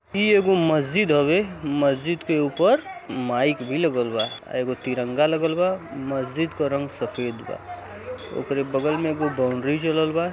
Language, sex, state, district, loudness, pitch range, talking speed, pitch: Hindi, male, Uttar Pradesh, Gorakhpur, -23 LUFS, 135-170 Hz, 145 wpm, 150 Hz